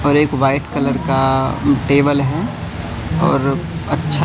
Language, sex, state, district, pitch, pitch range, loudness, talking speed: Hindi, male, Madhya Pradesh, Katni, 140 Hz, 135-145 Hz, -17 LUFS, 125 wpm